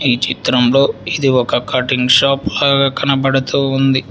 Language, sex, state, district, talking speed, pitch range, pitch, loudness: Telugu, male, Telangana, Hyderabad, 130 wpm, 125-140 Hz, 135 Hz, -14 LUFS